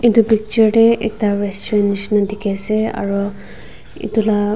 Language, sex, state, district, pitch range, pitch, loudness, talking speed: Nagamese, female, Nagaland, Dimapur, 200-220 Hz, 210 Hz, -17 LUFS, 160 wpm